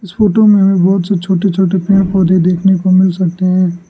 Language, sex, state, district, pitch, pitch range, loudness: Hindi, male, Arunachal Pradesh, Lower Dibang Valley, 185 Hz, 185-195 Hz, -11 LUFS